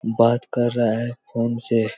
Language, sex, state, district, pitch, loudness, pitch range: Hindi, male, Chhattisgarh, Raigarh, 115 Hz, -22 LUFS, 115-120 Hz